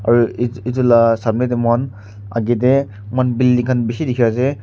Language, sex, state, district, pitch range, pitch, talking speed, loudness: Nagamese, male, Nagaland, Kohima, 115-125 Hz, 120 Hz, 155 wpm, -16 LUFS